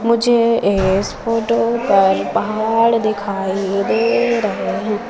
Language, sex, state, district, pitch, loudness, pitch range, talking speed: Hindi, female, Madhya Pradesh, Umaria, 220 Hz, -16 LUFS, 200-230 Hz, 105 wpm